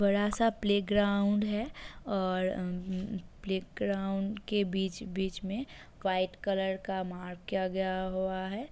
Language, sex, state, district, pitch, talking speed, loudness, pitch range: Hindi, female, Uttar Pradesh, Jalaun, 195 Hz, 130 wpm, -33 LUFS, 185-205 Hz